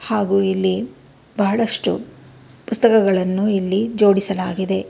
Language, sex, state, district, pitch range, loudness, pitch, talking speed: Kannada, female, Karnataka, Bangalore, 190-215 Hz, -17 LUFS, 195 Hz, 75 wpm